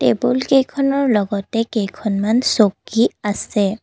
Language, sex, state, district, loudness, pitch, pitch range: Assamese, female, Assam, Kamrup Metropolitan, -18 LUFS, 220 Hz, 205-250 Hz